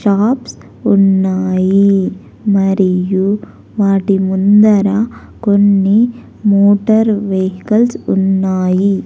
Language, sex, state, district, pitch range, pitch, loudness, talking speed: Telugu, female, Andhra Pradesh, Sri Satya Sai, 190-205 Hz, 200 Hz, -13 LUFS, 60 wpm